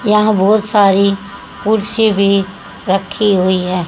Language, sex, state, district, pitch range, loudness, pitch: Hindi, female, Haryana, Charkhi Dadri, 195-210 Hz, -13 LUFS, 200 Hz